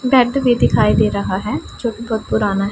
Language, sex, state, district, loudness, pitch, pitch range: Hindi, female, Punjab, Pathankot, -17 LUFS, 235 Hz, 215-250 Hz